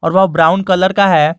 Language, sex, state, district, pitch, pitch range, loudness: Hindi, male, Jharkhand, Garhwa, 185 Hz, 165-190 Hz, -12 LUFS